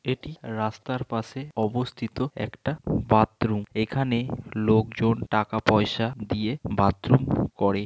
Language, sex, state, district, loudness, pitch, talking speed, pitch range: Bengali, male, West Bengal, North 24 Parganas, -26 LUFS, 115 Hz, 105 wpm, 110-125 Hz